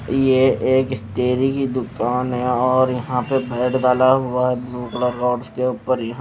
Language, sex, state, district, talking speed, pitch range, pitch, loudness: Hindi, male, Himachal Pradesh, Shimla, 175 wpm, 125-130 Hz, 125 Hz, -19 LUFS